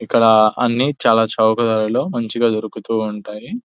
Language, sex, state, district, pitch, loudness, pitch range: Telugu, male, Telangana, Nalgonda, 115 Hz, -17 LUFS, 110-120 Hz